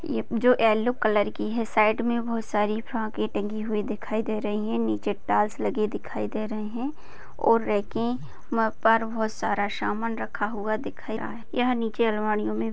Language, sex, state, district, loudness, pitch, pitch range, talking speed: Hindi, female, Bihar, Kishanganj, -26 LUFS, 215 Hz, 210-230 Hz, 190 wpm